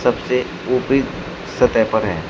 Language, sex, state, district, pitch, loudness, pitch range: Hindi, male, Uttar Pradesh, Shamli, 125 Hz, -19 LUFS, 105-125 Hz